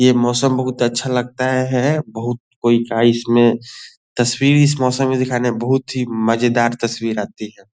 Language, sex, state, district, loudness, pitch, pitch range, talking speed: Hindi, male, Bihar, Lakhisarai, -17 LUFS, 120 Hz, 120-130 Hz, 170 wpm